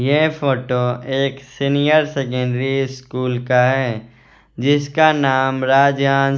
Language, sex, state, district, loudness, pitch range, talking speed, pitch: Hindi, male, Bihar, West Champaran, -17 LUFS, 125-140 Hz, 105 wpm, 135 Hz